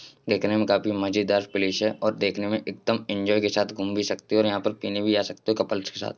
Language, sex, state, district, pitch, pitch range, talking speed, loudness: Hindi, male, Bihar, Jahanabad, 105 Hz, 100-105 Hz, 280 wpm, -25 LUFS